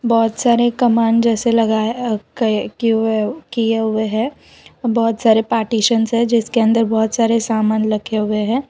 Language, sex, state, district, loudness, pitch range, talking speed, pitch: Hindi, female, Gujarat, Valsad, -16 LUFS, 220-235 Hz, 165 wpm, 225 Hz